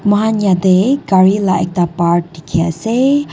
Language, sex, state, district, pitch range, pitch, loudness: Nagamese, female, Nagaland, Dimapur, 170-215 Hz, 190 Hz, -14 LUFS